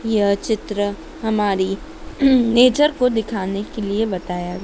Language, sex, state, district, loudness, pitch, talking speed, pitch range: Hindi, female, Madhya Pradesh, Dhar, -19 LUFS, 210 Hz, 115 wpm, 200-240 Hz